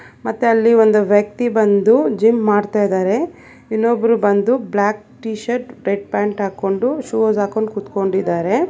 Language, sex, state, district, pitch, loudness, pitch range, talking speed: Kannada, female, Karnataka, Bangalore, 215 Hz, -17 LUFS, 205-230 Hz, 130 wpm